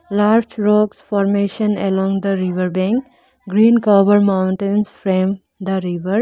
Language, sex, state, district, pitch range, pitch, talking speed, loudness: English, female, Arunachal Pradesh, Lower Dibang Valley, 190-210 Hz, 200 Hz, 125 wpm, -17 LUFS